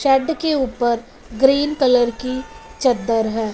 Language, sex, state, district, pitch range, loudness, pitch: Hindi, female, Punjab, Fazilka, 235-270 Hz, -19 LUFS, 255 Hz